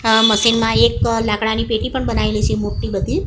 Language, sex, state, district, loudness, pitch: Gujarati, female, Gujarat, Gandhinagar, -16 LUFS, 210 Hz